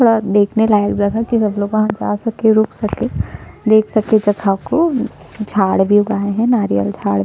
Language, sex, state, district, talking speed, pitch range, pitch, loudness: Hindi, female, Chhattisgarh, Sukma, 200 wpm, 205-220 Hz, 215 Hz, -16 LUFS